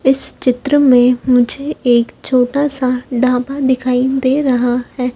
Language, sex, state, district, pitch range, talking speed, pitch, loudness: Hindi, female, Madhya Pradesh, Dhar, 250-270 Hz, 140 wpm, 255 Hz, -14 LUFS